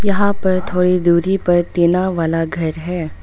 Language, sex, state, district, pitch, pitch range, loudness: Hindi, female, Arunachal Pradesh, Longding, 180 Hz, 170-185 Hz, -16 LUFS